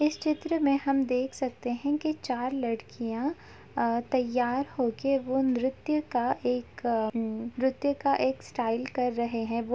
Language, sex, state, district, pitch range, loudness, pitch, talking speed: Hindi, female, Uttar Pradesh, Jalaun, 235-275 Hz, -29 LUFS, 250 Hz, 165 wpm